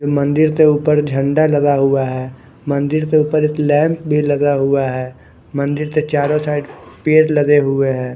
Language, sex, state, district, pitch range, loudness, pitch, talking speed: Hindi, male, Haryana, Charkhi Dadri, 140-150 Hz, -15 LUFS, 145 Hz, 175 wpm